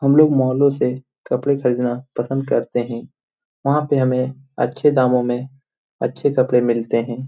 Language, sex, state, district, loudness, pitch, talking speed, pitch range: Hindi, male, Bihar, Jamui, -19 LUFS, 130 Hz, 155 wpm, 125-140 Hz